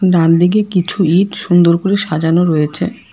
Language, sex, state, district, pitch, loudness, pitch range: Bengali, female, West Bengal, Alipurduar, 175 Hz, -13 LUFS, 165-190 Hz